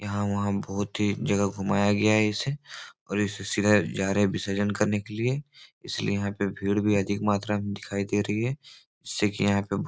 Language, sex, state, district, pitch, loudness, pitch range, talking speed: Hindi, male, Bihar, Jahanabad, 100 Hz, -27 LUFS, 100-105 Hz, 225 wpm